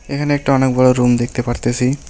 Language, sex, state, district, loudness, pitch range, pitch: Bengali, male, West Bengal, Alipurduar, -16 LUFS, 120-140 Hz, 130 Hz